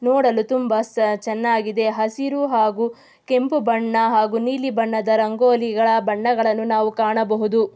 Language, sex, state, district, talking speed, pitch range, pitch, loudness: Kannada, female, Karnataka, Mysore, 115 wpm, 220-245 Hz, 225 Hz, -19 LUFS